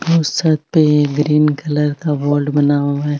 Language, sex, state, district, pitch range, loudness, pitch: Marwari, female, Rajasthan, Nagaur, 145-155 Hz, -15 LUFS, 150 Hz